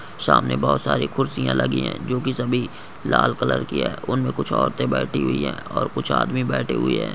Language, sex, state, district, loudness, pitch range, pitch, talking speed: Hindi, male, Goa, North and South Goa, -22 LUFS, 65-70 Hz, 65 Hz, 210 wpm